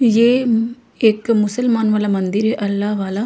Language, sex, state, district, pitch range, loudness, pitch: Chhattisgarhi, female, Chhattisgarh, Korba, 205-235 Hz, -17 LUFS, 220 Hz